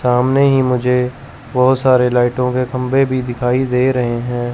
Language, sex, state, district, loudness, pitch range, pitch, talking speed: Hindi, male, Chandigarh, Chandigarh, -15 LUFS, 125-130 Hz, 125 Hz, 170 wpm